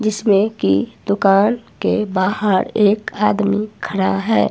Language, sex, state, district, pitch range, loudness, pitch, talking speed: Hindi, female, Himachal Pradesh, Shimla, 195-215 Hz, -17 LUFS, 205 Hz, 120 wpm